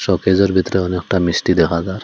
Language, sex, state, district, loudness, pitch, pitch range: Bengali, male, Assam, Hailakandi, -16 LUFS, 95 Hz, 90-95 Hz